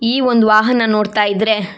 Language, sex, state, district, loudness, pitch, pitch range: Kannada, female, Karnataka, Shimoga, -13 LUFS, 220 Hz, 210-230 Hz